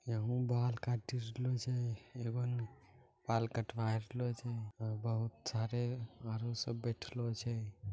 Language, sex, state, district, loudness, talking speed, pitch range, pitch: Angika, male, Bihar, Bhagalpur, -39 LUFS, 120 wpm, 115-120 Hz, 115 Hz